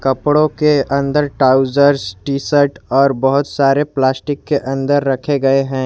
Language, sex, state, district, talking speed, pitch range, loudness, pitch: Hindi, male, Jharkhand, Garhwa, 155 wpm, 135-145 Hz, -15 LUFS, 140 Hz